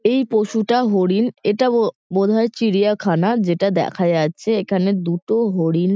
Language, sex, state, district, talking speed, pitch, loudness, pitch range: Bengali, female, West Bengal, Kolkata, 150 wpm, 205 Hz, -18 LUFS, 180-225 Hz